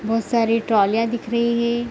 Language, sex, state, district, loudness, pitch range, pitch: Hindi, female, Bihar, Araria, -20 LUFS, 225-235 Hz, 230 Hz